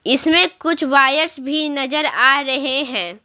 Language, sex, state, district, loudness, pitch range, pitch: Hindi, female, Bihar, Patna, -16 LUFS, 270-305 Hz, 280 Hz